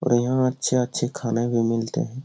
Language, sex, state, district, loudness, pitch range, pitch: Hindi, male, Bihar, Lakhisarai, -23 LUFS, 120-130 Hz, 125 Hz